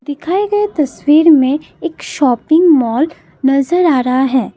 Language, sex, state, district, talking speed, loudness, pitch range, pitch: Hindi, female, Assam, Kamrup Metropolitan, 145 wpm, -13 LUFS, 265-335 Hz, 295 Hz